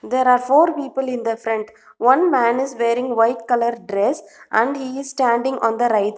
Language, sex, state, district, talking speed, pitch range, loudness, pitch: English, female, Telangana, Hyderabad, 215 wpm, 230-265 Hz, -19 LUFS, 240 Hz